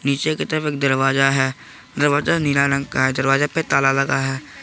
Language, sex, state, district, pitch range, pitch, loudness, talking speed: Hindi, male, Jharkhand, Garhwa, 135-145 Hz, 135 Hz, -19 LUFS, 205 wpm